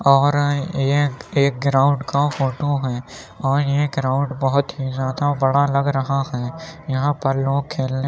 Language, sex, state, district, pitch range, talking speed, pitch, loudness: Hindi, male, Uttar Pradesh, Muzaffarnagar, 135-145 Hz, 165 wpm, 140 Hz, -20 LUFS